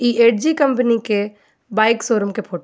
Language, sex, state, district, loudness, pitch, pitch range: Bhojpuri, female, Jharkhand, Palamu, -17 LUFS, 230 Hz, 210-240 Hz